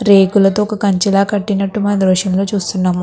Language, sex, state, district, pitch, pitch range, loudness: Telugu, female, Andhra Pradesh, Krishna, 195 Hz, 190-205 Hz, -14 LUFS